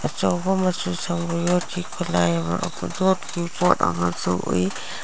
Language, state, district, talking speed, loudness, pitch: Manipuri, Manipur, Imphal West, 130 wpm, -23 LUFS, 175 Hz